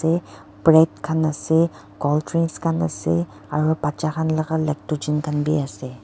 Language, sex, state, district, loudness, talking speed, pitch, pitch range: Nagamese, female, Nagaland, Dimapur, -21 LUFS, 140 wpm, 150 Hz, 130-160 Hz